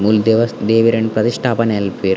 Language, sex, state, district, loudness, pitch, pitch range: Tulu, male, Karnataka, Dakshina Kannada, -15 LUFS, 110 Hz, 105-115 Hz